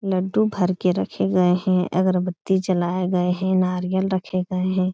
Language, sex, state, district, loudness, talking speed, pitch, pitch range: Hindi, female, Bihar, Supaul, -21 LUFS, 170 wpm, 185 Hz, 180-185 Hz